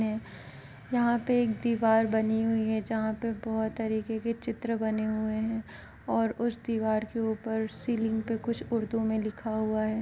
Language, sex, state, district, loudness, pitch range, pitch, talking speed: Hindi, female, Uttar Pradesh, Etah, -30 LUFS, 220-230 Hz, 220 Hz, 180 wpm